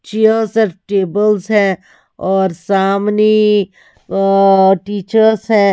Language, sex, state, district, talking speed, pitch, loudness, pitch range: Hindi, female, Haryana, Rohtak, 95 wpm, 205 Hz, -13 LUFS, 195-215 Hz